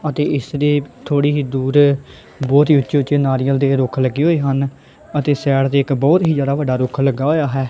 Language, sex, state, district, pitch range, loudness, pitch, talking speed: Punjabi, female, Punjab, Kapurthala, 135-145 Hz, -16 LUFS, 140 Hz, 220 wpm